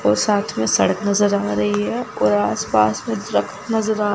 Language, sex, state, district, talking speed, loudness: Hindi, female, Chandigarh, Chandigarh, 215 wpm, -19 LUFS